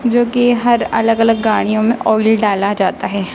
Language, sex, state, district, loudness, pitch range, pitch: Hindi, male, Madhya Pradesh, Dhar, -14 LUFS, 210-240 Hz, 225 Hz